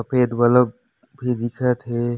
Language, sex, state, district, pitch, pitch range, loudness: Chhattisgarhi, male, Chhattisgarh, Raigarh, 120 Hz, 120-125 Hz, -20 LUFS